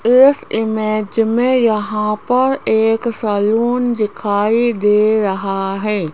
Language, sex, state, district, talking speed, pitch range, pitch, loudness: Hindi, female, Rajasthan, Jaipur, 105 wpm, 210-235 Hz, 220 Hz, -15 LUFS